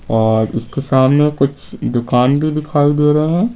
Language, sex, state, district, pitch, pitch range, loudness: Hindi, male, Bihar, Patna, 140 Hz, 125-150 Hz, -15 LUFS